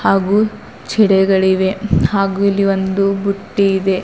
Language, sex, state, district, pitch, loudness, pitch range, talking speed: Kannada, female, Karnataka, Bidar, 195 Hz, -15 LUFS, 190-200 Hz, 120 wpm